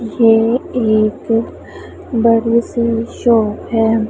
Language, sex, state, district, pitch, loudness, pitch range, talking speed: Hindi, female, Punjab, Pathankot, 230 Hz, -15 LUFS, 225-235 Hz, 90 wpm